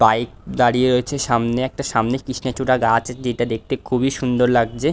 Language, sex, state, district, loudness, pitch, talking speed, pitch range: Bengali, male, West Bengal, Dakshin Dinajpur, -19 LUFS, 125 Hz, 160 wpm, 120-130 Hz